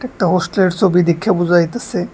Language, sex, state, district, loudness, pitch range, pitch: Bengali, male, Tripura, West Tripura, -15 LUFS, 175-215 Hz, 185 Hz